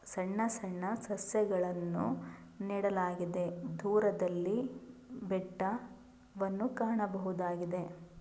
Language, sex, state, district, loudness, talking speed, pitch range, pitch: Kannada, female, Karnataka, Bellary, -36 LUFS, 50 wpm, 180-220 Hz, 195 Hz